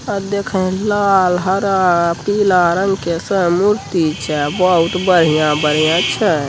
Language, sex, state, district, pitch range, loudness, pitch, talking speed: Hindi, male, Bihar, Begusarai, 165-195 Hz, -15 LUFS, 180 Hz, 120 wpm